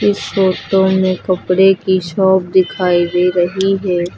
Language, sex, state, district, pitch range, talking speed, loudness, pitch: Hindi, female, Uttar Pradesh, Lucknow, 180-190 Hz, 145 wpm, -14 LUFS, 185 Hz